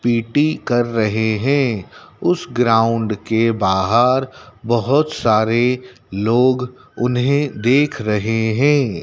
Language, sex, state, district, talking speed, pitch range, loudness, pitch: Hindi, male, Madhya Pradesh, Dhar, 100 wpm, 110-130 Hz, -17 LUFS, 120 Hz